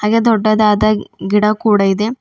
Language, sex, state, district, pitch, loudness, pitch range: Kannada, female, Karnataka, Bidar, 215 Hz, -14 LUFS, 210-215 Hz